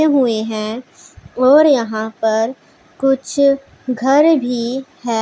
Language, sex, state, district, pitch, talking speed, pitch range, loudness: Hindi, female, Punjab, Pathankot, 255 Hz, 105 wpm, 225-275 Hz, -16 LUFS